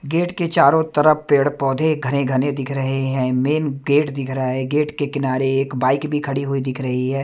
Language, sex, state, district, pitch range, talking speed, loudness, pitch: Hindi, male, Punjab, Kapurthala, 135-150 Hz, 225 wpm, -19 LUFS, 140 Hz